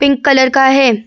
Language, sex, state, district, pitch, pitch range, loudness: Hindi, female, Uttar Pradesh, Jyotiba Phule Nagar, 270 Hz, 260-275 Hz, -10 LUFS